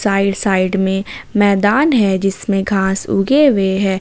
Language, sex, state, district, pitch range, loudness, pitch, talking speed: Hindi, female, Jharkhand, Ranchi, 195-205 Hz, -15 LUFS, 195 Hz, 150 wpm